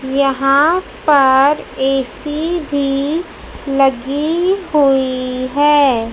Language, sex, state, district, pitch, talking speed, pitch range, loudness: Hindi, male, Madhya Pradesh, Dhar, 280 Hz, 70 wpm, 270-305 Hz, -15 LUFS